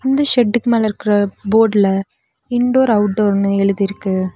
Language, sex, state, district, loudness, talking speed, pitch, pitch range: Tamil, female, Tamil Nadu, Nilgiris, -15 LUFS, 110 wpm, 210 Hz, 200-240 Hz